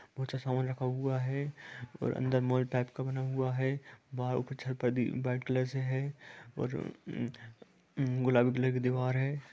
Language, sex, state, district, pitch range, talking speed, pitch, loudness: Hindi, male, Jharkhand, Sahebganj, 125-130 Hz, 155 wpm, 130 Hz, -34 LUFS